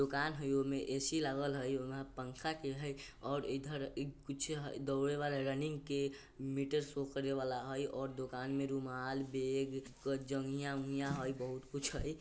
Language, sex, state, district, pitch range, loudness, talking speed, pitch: Bajjika, male, Bihar, Vaishali, 135-140 Hz, -40 LUFS, 170 wpm, 135 Hz